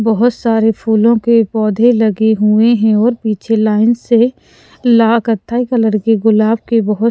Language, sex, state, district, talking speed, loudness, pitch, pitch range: Hindi, female, Punjab, Pathankot, 160 wpm, -12 LUFS, 225 Hz, 220-235 Hz